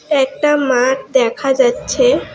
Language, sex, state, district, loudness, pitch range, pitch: Bengali, female, West Bengal, Alipurduar, -15 LUFS, 260-300 Hz, 275 Hz